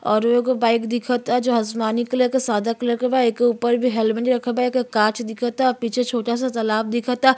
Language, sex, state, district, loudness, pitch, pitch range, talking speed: Bhojpuri, female, Uttar Pradesh, Gorakhpur, -20 LUFS, 240 Hz, 230-250 Hz, 225 wpm